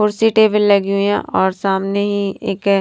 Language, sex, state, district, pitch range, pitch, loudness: Hindi, female, Haryana, Rohtak, 195-210 Hz, 200 Hz, -16 LUFS